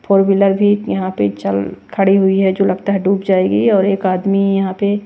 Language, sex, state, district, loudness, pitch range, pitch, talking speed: Hindi, female, Bihar, West Champaran, -15 LUFS, 185-195 Hz, 195 Hz, 225 wpm